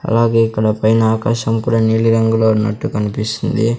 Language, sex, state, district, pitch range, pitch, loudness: Telugu, male, Andhra Pradesh, Sri Satya Sai, 110-115 Hz, 115 Hz, -15 LUFS